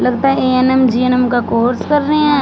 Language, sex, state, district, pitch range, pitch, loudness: Hindi, female, Punjab, Fazilka, 245-275 Hz, 255 Hz, -13 LUFS